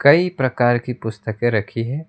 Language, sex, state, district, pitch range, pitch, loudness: Hindi, male, West Bengal, Alipurduar, 115-135 Hz, 120 Hz, -20 LUFS